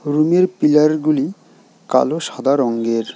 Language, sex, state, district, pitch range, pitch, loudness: Bengali, male, West Bengal, Alipurduar, 130-155 Hz, 150 Hz, -17 LUFS